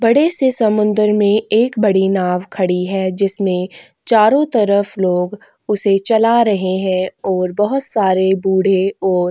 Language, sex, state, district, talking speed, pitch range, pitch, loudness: Hindi, female, Goa, North and South Goa, 150 wpm, 185-215 Hz, 200 Hz, -15 LUFS